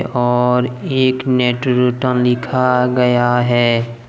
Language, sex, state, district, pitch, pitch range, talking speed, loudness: Hindi, male, Jharkhand, Deoghar, 125 Hz, 120-125 Hz, 105 wpm, -15 LUFS